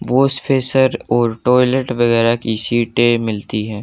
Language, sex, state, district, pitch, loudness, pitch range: Hindi, male, Haryana, Jhajjar, 120 Hz, -16 LUFS, 115-130 Hz